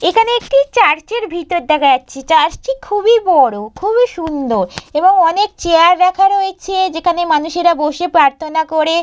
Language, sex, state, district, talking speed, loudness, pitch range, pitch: Bengali, female, West Bengal, Purulia, 155 wpm, -13 LUFS, 310-395 Hz, 345 Hz